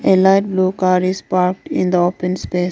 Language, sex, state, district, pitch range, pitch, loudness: English, female, Arunachal Pradesh, Lower Dibang Valley, 180-190 Hz, 185 Hz, -16 LUFS